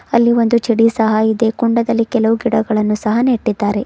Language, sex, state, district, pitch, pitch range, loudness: Kannada, female, Karnataka, Bidar, 230 Hz, 220-235 Hz, -15 LUFS